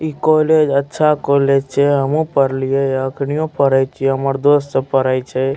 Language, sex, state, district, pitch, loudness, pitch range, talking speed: Maithili, male, Bihar, Madhepura, 140 Hz, -15 LUFS, 135-150 Hz, 170 wpm